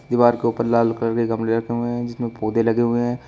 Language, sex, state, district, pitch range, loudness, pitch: Hindi, male, Uttar Pradesh, Shamli, 115-120 Hz, -20 LUFS, 115 Hz